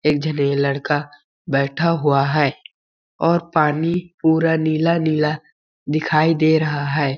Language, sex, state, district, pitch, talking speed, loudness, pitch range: Hindi, male, Chhattisgarh, Balrampur, 155 Hz, 115 wpm, -19 LUFS, 140-160 Hz